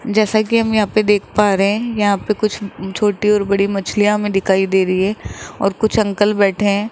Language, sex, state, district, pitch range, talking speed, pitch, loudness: Hindi, male, Rajasthan, Jaipur, 195-215 Hz, 225 wpm, 205 Hz, -16 LUFS